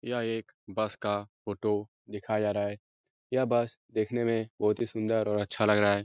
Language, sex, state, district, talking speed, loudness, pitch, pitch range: Hindi, male, Uttar Pradesh, Etah, 210 wpm, -30 LUFS, 105 Hz, 105-115 Hz